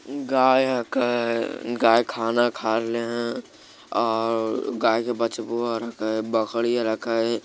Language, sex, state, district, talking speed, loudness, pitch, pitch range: Magahi, male, Bihar, Jamui, 105 wpm, -23 LUFS, 115 Hz, 115-120 Hz